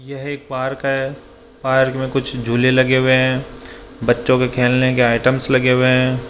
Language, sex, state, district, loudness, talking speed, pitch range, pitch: Hindi, male, Rajasthan, Jaipur, -17 LUFS, 180 wpm, 125-130 Hz, 130 Hz